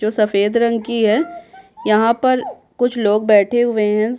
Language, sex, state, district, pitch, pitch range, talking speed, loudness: Hindi, female, Bihar, Kishanganj, 230 Hz, 215-245 Hz, 170 wpm, -16 LUFS